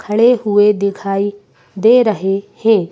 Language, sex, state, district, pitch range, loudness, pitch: Hindi, female, Madhya Pradesh, Bhopal, 200-220 Hz, -14 LUFS, 205 Hz